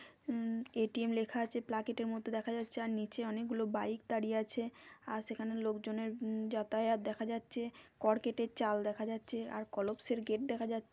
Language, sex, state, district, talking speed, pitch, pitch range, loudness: Bengali, female, West Bengal, Kolkata, 170 wpm, 225 Hz, 220-235 Hz, -38 LUFS